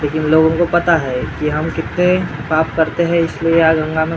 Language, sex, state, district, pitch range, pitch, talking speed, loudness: Hindi, male, Maharashtra, Gondia, 155-170 Hz, 160 Hz, 260 wpm, -15 LUFS